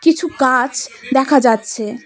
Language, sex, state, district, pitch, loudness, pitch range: Bengali, female, West Bengal, Cooch Behar, 260 Hz, -15 LUFS, 235-280 Hz